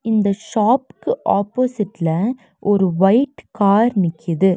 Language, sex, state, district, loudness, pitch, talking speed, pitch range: Tamil, female, Tamil Nadu, Nilgiris, -18 LUFS, 205 Hz, 90 wpm, 190-235 Hz